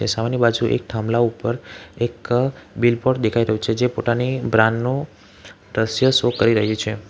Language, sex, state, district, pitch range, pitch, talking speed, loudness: Gujarati, male, Gujarat, Valsad, 110-120 Hz, 115 Hz, 170 wpm, -20 LUFS